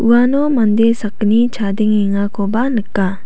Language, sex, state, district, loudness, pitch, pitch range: Garo, female, Meghalaya, South Garo Hills, -15 LUFS, 215 Hz, 205-235 Hz